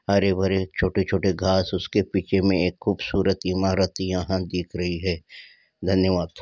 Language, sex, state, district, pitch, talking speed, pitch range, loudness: Hindi, male, Uttar Pradesh, Ghazipur, 95 Hz, 130 wpm, 90-95 Hz, -24 LUFS